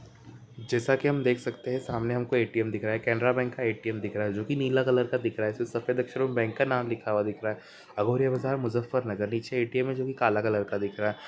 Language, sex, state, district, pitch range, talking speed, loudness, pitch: Hindi, male, Bihar, Muzaffarpur, 110-130 Hz, 280 wpm, -28 LUFS, 120 Hz